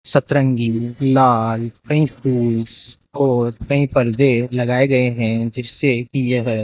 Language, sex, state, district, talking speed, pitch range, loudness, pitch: Hindi, male, Rajasthan, Jaipur, 125 wpm, 115-135 Hz, -17 LUFS, 125 Hz